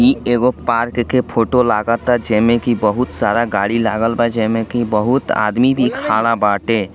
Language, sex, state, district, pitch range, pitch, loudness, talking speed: Hindi, male, Bihar, East Champaran, 110-120 Hz, 115 Hz, -16 LUFS, 180 wpm